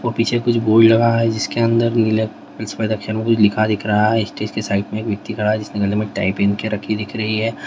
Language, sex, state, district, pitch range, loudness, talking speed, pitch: Hindi, male, Bihar, Darbhanga, 105-115 Hz, -18 LUFS, 190 wpm, 110 Hz